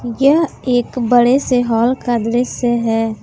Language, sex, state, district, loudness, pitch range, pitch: Hindi, female, Jharkhand, Palamu, -15 LUFS, 235-250 Hz, 245 Hz